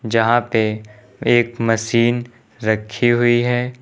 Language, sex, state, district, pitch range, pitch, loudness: Hindi, male, Uttar Pradesh, Lucknow, 110-120 Hz, 120 Hz, -18 LUFS